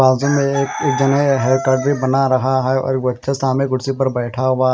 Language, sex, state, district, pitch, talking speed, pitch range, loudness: Hindi, male, Haryana, Rohtak, 130 Hz, 215 wpm, 130-135 Hz, -17 LUFS